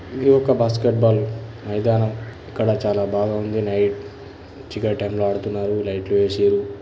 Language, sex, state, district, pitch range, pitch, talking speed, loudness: Telugu, male, Andhra Pradesh, Guntur, 100-115 Hz, 105 Hz, 115 wpm, -20 LUFS